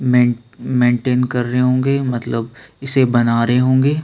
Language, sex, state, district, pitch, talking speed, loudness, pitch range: Hindi, male, Chhattisgarh, Sukma, 125 Hz, 150 wpm, -16 LUFS, 120-130 Hz